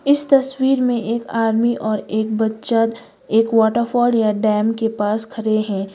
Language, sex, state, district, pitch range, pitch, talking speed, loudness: Hindi, female, Sikkim, Gangtok, 220-235 Hz, 225 Hz, 160 wpm, -18 LUFS